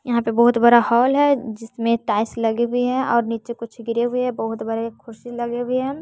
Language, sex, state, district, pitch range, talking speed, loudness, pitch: Hindi, male, Bihar, West Champaran, 230-245 Hz, 220 wpm, -20 LUFS, 235 Hz